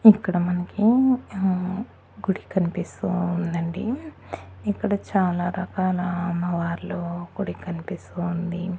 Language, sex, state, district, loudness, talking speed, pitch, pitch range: Telugu, female, Andhra Pradesh, Annamaya, -25 LUFS, 90 wpm, 180 Hz, 175-200 Hz